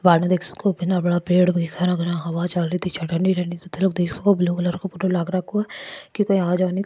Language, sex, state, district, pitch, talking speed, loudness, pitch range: Marwari, female, Rajasthan, Churu, 180 Hz, 80 wpm, -22 LUFS, 175-185 Hz